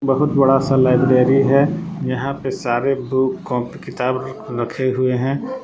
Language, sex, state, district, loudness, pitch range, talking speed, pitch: Hindi, male, Jharkhand, Palamu, -18 LUFS, 130-140 Hz, 150 wpm, 135 Hz